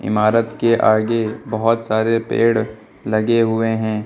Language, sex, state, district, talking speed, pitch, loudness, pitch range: Hindi, male, Uttar Pradesh, Lucknow, 135 wpm, 110 Hz, -17 LUFS, 110-115 Hz